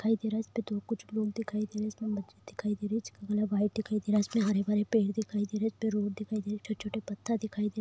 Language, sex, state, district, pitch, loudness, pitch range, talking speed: Hindi, female, Bihar, Vaishali, 210 Hz, -33 LUFS, 210-220 Hz, 245 wpm